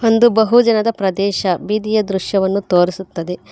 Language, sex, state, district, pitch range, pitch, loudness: Kannada, female, Karnataka, Bangalore, 190-220 Hz, 200 Hz, -16 LUFS